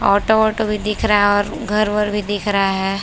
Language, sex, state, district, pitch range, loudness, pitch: Hindi, female, Maharashtra, Chandrapur, 200-215 Hz, -17 LUFS, 210 Hz